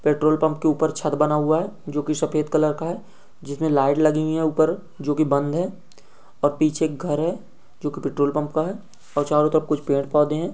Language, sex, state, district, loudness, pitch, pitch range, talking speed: Hindi, male, Jharkhand, Sahebganj, -22 LUFS, 155 Hz, 150-160 Hz, 240 wpm